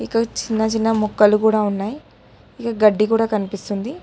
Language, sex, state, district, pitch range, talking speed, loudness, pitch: Telugu, female, Telangana, Hyderabad, 210-225 Hz, 150 wpm, -19 LUFS, 220 Hz